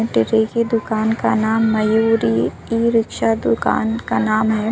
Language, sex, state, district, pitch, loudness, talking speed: Hindi, female, Uttar Pradesh, Budaun, 220 Hz, -18 LUFS, 140 wpm